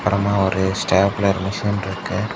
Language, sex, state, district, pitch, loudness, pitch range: Tamil, male, Tamil Nadu, Kanyakumari, 95 Hz, -20 LUFS, 95-100 Hz